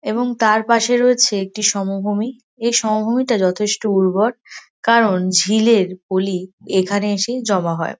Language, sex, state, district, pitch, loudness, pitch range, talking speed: Bengali, female, West Bengal, North 24 Parganas, 215 Hz, -17 LUFS, 190-230 Hz, 135 wpm